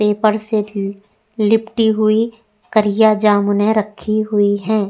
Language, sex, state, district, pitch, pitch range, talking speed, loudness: Hindi, female, Uttar Pradesh, Etah, 215 Hz, 205-220 Hz, 110 wpm, -16 LUFS